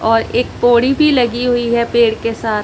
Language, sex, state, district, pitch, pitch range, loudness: Hindi, female, Punjab, Pathankot, 235 Hz, 230-245 Hz, -14 LUFS